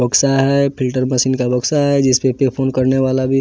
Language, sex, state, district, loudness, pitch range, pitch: Hindi, male, Bihar, West Champaran, -15 LUFS, 130-135 Hz, 130 Hz